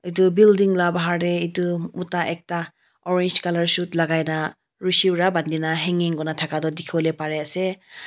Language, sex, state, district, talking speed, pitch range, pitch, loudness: Nagamese, female, Nagaland, Kohima, 195 wpm, 160-180 Hz, 175 Hz, -21 LUFS